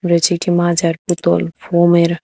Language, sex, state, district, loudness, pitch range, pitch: Bengali, female, Tripura, West Tripura, -15 LUFS, 170-175 Hz, 170 Hz